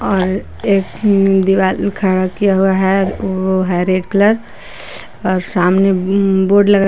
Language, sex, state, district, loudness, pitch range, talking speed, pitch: Hindi, female, Jharkhand, Palamu, -14 LUFS, 185-200 Hz, 140 wpm, 190 Hz